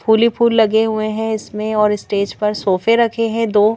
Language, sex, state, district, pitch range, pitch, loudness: Hindi, female, Madhya Pradesh, Bhopal, 210-225 Hz, 220 Hz, -16 LUFS